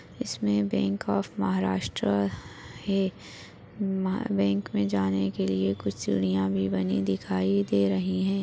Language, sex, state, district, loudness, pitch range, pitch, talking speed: Hindi, female, Maharashtra, Aurangabad, -27 LUFS, 95-100 Hz, 100 Hz, 135 wpm